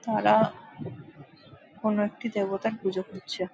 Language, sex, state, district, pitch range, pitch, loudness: Bengali, female, West Bengal, Jalpaiguri, 190-215 Hz, 205 Hz, -28 LUFS